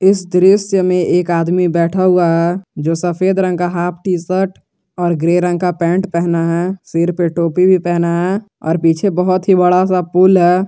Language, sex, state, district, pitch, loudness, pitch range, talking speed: Hindi, male, Jharkhand, Garhwa, 180 Hz, -14 LUFS, 170-185 Hz, 195 wpm